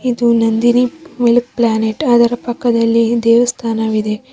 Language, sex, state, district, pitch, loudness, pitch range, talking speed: Kannada, female, Karnataka, Bangalore, 235 Hz, -14 LUFS, 230-245 Hz, 95 wpm